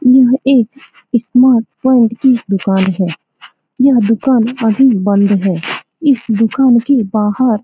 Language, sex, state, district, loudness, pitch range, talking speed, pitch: Hindi, female, Bihar, Saran, -12 LUFS, 210-260 Hz, 140 wpm, 240 Hz